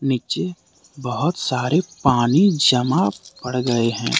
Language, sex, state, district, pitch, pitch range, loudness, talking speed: Hindi, male, Jharkhand, Deoghar, 130 Hz, 125-160 Hz, -19 LUFS, 115 wpm